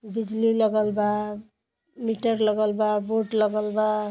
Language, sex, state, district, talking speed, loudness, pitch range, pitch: Bhojpuri, female, Uttar Pradesh, Gorakhpur, 130 wpm, -24 LUFS, 210-220 Hz, 215 Hz